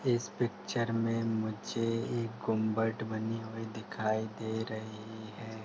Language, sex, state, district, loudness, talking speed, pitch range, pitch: Hindi, male, Uttar Pradesh, Hamirpur, -35 LUFS, 130 wpm, 110-115 Hz, 110 Hz